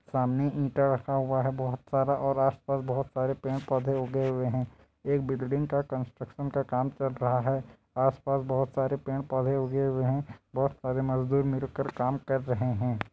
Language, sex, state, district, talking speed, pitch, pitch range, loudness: Hindi, male, Bihar, Madhepura, 185 wpm, 135 Hz, 130-135 Hz, -30 LUFS